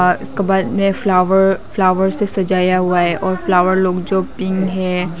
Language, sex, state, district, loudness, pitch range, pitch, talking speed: Hindi, female, Arunachal Pradesh, Papum Pare, -16 LUFS, 180-190 Hz, 190 Hz, 160 wpm